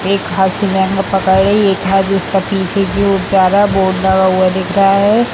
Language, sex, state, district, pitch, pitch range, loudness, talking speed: Hindi, female, Bihar, Samastipur, 195 Hz, 190-195 Hz, -12 LUFS, 225 wpm